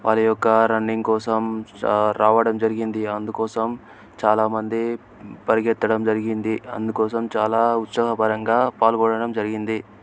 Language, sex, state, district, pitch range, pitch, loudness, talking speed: Telugu, male, Telangana, Nalgonda, 110-115 Hz, 110 Hz, -21 LUFS, 100 wpm